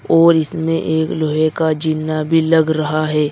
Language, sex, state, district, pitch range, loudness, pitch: Hindi, male, Uttar Pradesh, Saharanpur, 155-160 Hz, -16 LUFS, 155 Hz